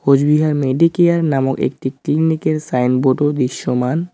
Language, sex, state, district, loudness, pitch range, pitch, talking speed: Bengali, male, West Bengal, Cooch Behar, -16 LUFS, 130-160 Hz, 145 Hz, 130 wpm